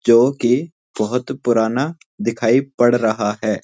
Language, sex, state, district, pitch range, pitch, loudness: Hindi, male, Uttarakhand, Uttarkashi, 110-130 Hz, 120 Hz, -18 LUFS